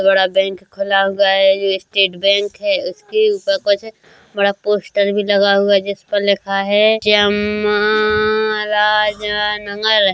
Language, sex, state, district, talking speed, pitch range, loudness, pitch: Hindi, female, Chhattisgarh, Korba, 140 wpm, 200-210 Hz, -15 LUFS, 205 Hz